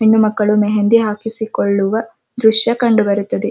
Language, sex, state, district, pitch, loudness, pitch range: Kannada, female, Karnataka, Dharwad, 220 Hz, -15 LUFS, 210-225 Hz